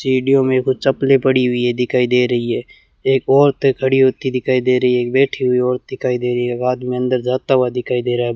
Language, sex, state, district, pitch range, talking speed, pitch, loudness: Hindi, male, Rajasthan, Bikaner, 125-130 Hz, 250 wpm, 125 Hz, -16 LUFS